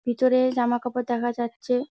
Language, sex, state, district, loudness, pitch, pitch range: Bengali, female, West Bengal, Jalpaiguri, -24 LUFS, 245 Hz, 240-255 Hz